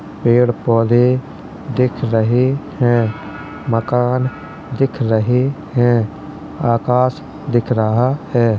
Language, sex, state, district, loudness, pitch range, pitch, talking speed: Hindi, male, Uttar Pradesh, Jalaun, -16 LUFS, 115-130 Hz, 125 Hz, 90 wpm